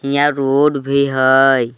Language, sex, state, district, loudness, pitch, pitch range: Magahi, male, Jharkhand, Palamu, -14 LUFS, 135 Hz, 135-140 Hz